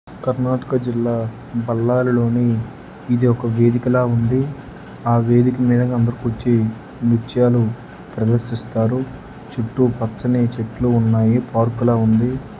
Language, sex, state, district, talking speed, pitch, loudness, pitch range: Telugu, male, Karnataka, Bellary, 85 wpm, 120 Hz, -18 LUFS, 115-125 Hz